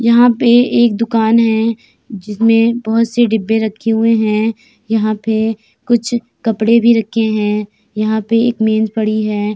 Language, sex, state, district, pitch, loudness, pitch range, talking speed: Hindi, female, Uttar Pradesh, Jyotiba Phule Nagar, 225 Hz, -14 LUFS, 220-230 Hz, 150 wpm